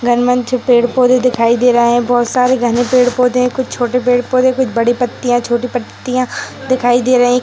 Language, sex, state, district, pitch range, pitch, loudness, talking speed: Hindi, female, Uttar Pradesh, Hamirpur, 240-255 Hz, 245 Hz, -13 LUFS, 210 wpm